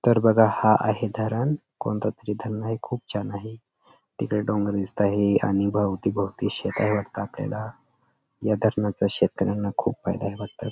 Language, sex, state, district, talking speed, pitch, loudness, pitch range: Marathi, male, Maharashtra, Dhule, 150 wpm, 105 Hz, -25 LUFS, 100-115 Hz